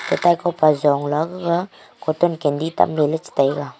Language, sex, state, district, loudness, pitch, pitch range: Wancho, female, Arunachal Pradesh, Longding, -19 LUFS, 155 Hz, 145-170 Hz